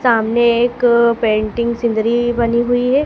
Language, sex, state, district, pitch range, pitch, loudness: Hindi, female, Madhya Pradesh, Dhar, 235-240 Hz, 235 Hz, -15 LUFS